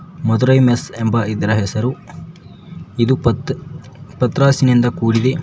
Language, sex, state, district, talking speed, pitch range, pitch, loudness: Kannada, male, Karnataka, Koppal, 100 wpm, 115-140 Hz, 125 Hz, -16 LUFS